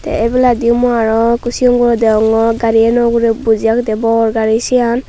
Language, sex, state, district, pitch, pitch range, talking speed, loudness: Chakma, female, Tripura, Unakoti, 230 Hz, 225-240 Hz, 190 wpm, -12 LUFS